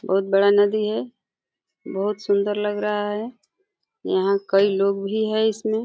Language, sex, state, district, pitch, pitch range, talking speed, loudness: Hindi, female, Uttar Pradesh, Deoria, 205 Hz, 200-220 Hz, 155 wpm, -21 LUFS